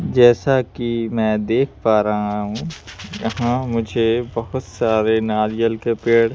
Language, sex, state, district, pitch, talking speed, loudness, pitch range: Hindi, male, Madhya Pradesh, Bhopal, 115 Hz, 130 wpm, -19 LUFS, 110-120 Hz